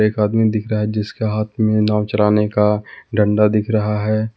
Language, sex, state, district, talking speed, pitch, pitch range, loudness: Hindi, male, Jharkhand, Palamu, 205 wpm, 105 Hz, 105-110 Hz, -17 LUFS